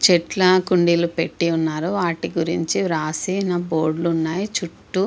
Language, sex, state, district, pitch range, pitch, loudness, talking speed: Telugu, female, Andhra Pradesh, Visakhapatnam, 165-185 Hz, 170 Hz, -20 LUFS, 120 wpm